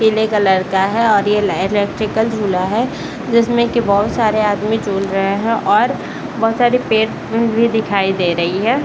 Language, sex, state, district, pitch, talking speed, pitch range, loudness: Hindi, female, Bihar, Saran, 220 Hz, 195 wpm, 200-230 Hz, -16 LUFS